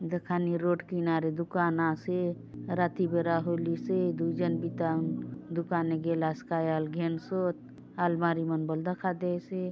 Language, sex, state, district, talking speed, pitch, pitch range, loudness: Halbi, female, Chhattisgarh, Bastar, 165 wpm, 170 Hz, 160-175 Hz, -31 LUFS